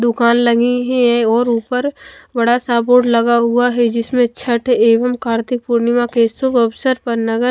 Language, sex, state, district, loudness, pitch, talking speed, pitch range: Hindi, female, Chandigarh, Chandigarh, -15 LUFS, 240 Hz, 175 wpm, 235-245 Hz